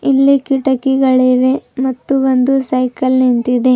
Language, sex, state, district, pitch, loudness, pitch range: Kannada, female, Karnataka, Bidar, 260 Hz, -13 LUFS, 255-270 Hz